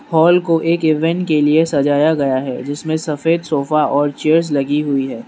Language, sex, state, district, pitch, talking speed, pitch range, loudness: Hindi, male, Manipur, Imphal West, 155 Hz, 195 wpm, 145-160 Hz, -16 LUFS